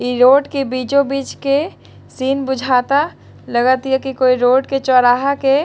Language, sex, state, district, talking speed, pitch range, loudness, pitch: Bhojpuri, female, Bihar, Saran, 170 wpm, 255-275 Hz, -15 LUFS, 265 Hz